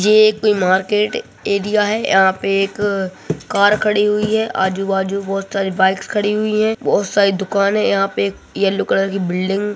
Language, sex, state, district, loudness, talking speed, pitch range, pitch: Hindi, male, Uttarakhand, Uttarkashi, -17 LUFS, 195 wpm, 190-210 Hz, 200 Hz